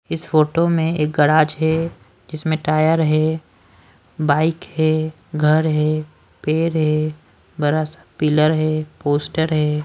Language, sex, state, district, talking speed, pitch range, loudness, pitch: Hindi, female, Maharashtra, Washim, 130 wpm, 150-160 Hz, -19 LUFS, 155 Hz